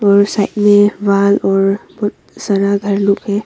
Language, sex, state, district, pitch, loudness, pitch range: Hindi, female, Arunachal Pradesh, Longding, 200 Hz, -13 LUFS, 200-205 Hz